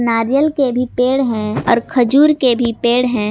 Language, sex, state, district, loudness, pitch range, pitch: Hindi, female, Jharkhand, Garhwa, -15 LUFS, 235-270 Hz, 245 Hz